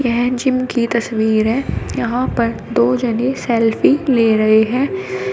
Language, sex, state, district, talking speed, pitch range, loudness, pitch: Hindi, female, Uttar Pradesh, Shamli, 145 wpm, 220-250 Hz, -16 LUFS, 235 Hz